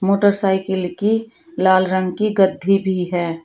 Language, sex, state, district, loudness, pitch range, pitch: Hindi, female, Uttar Pradesh, Shamli, -18 LUFS, 185-205 Hz, 190 Hz